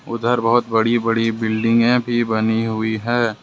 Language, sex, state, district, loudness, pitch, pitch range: Hindi, male, Jharkhand, Ranchi, -18 LUFS, 115 Hz, 110-120 Hz